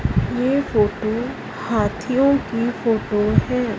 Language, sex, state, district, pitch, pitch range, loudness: Hindi, female, Punjab, Fazilka, 235 Hz, 215-255 Hz, -20 LUFS